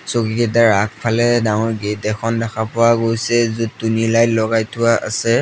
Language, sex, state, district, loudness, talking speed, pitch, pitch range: Assamese, male, Assam, Sonitpur, -17 LUFS, 155 wpm, 115 Hz, 110-115 Hz